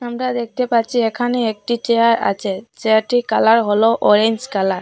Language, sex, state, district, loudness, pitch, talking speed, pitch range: Bengali, female, Assam, Hailakandi, -17 LUFS, 230 Hz, 160 wpm, 220-240 Hz